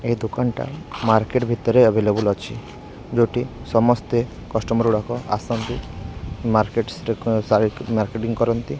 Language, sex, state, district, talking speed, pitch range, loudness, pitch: Odia, male, Odisha, Khordha, 115 wpm, 110-120 Hz, -21 LUFS, 115 Hz